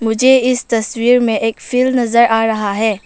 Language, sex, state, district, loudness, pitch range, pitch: Hindi, female, Arunachal Pradesh, Lower Dibang Valley, -14 LUFS, 220-250 Hz, 230 Hz